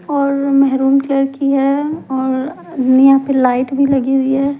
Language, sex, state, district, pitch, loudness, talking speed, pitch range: Hindi, male, Delhi, New Delhi, 275 Hz, -14 LUFS, 155 wpm, 265-275 Hz